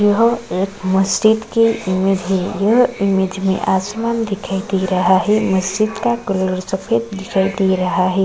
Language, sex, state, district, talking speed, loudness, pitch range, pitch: Hindi, female, Uttarakhand, Tehri Garhwal, 160 wpm, -17 LUFS, 190-220 Hz, 195 Hz